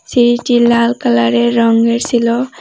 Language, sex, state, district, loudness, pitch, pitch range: Bengali, female, Assam, Hailakandi, -12 LUFS, 235 Hz, 230-240 Hz